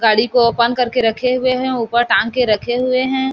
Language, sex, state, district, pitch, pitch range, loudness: Hindi, female, Chhattisgarh, Bilaspur, 245 Hz, 230-255 Hz, -16 LUFS